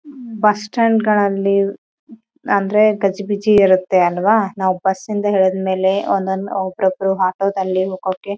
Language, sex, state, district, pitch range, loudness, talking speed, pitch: Kannada, female, Karnataka, Raichur, 190-210 Hz, -17 LUFS, 65 wpm, 195 Hz